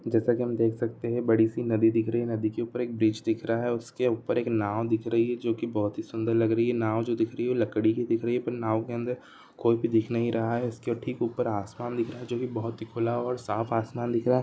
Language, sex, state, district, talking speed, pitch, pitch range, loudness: Hindi, male, Bihar, Saran, 305 wpm, 115 Hz, 115-120 Hz, -28 LUFS